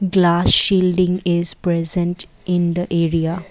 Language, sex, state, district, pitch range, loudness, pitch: English, female, Assam, Kamrup Metropolitan, 170-180 Hz, -16 LUFS, 175 Hz